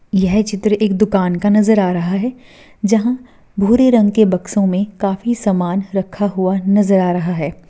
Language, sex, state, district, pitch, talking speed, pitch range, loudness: Hindi, female, Bihar, Darbhanga, 200 Hz, 170 wpm, 190-215 Hz, -15 LUFS